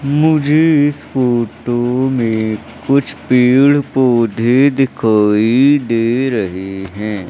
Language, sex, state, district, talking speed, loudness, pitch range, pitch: Hindi, male, Madhya Pradesh, Umaria, 90 wpm, -14 LUFS, 110-140 Hz, 125 Hz